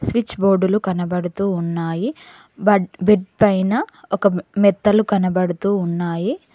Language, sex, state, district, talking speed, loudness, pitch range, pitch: Telugu, female, Telangana, Mahabubabad, 90 wpm, -19 LUFS, 180-210 Hz, 195 Hz